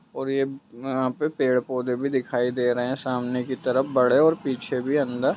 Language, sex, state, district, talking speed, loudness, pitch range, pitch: Hindi, male, Bihar, Lakhisarai, 200 wpm, -24 LUFS, 125-135 Hz, 130 Hz